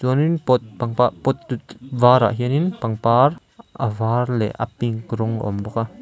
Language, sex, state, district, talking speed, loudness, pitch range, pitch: Mizo, male, Mizoram, Aizawl, 180 wpm, -20 LUFS, 115-130 Hz, 120 Hz